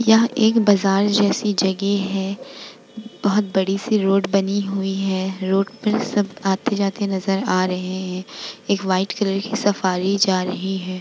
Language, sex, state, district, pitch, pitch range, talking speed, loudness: Hindi, female, Bihar, Vaishali, 195 Hz, 190-205 Hz, 155 wpm, -20 LUFS